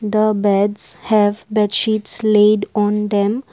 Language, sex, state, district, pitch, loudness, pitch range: English, female, Assam, Kamrup Metropolitan, 210 Hz, -15 LUFS, 205-215 Hz